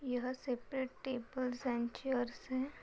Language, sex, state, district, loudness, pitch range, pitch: Hindi, female, Chhattisgarh, Bilaspur, -40 LUFS, 245-260 Hz, 255 Hz